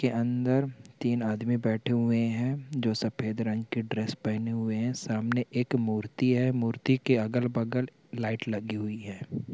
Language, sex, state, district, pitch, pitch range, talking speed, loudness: Hindi, male, Rajasthan, Nagaur, 115 Hz, 110-125 Hz, 175 wpm, -29 LUFS